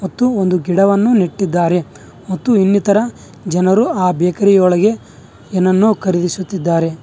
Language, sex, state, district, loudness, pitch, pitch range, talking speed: Kannada, male, Karnataka, Bangalore, -14 LUFS, 190 Hz, 180-200 Hz, 100 wpm